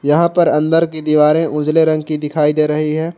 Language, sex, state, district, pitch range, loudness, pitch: Hindi, male, Jharkhand, Palamu, 150-160 Hz, -14 LUFS, 155 Hz